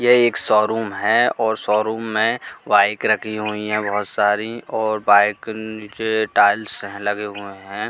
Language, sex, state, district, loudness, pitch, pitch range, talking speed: Hindi, male, Bihar, Katihar, -19 LUFS, 105 Hz, 105-110 Hz, 150 wpm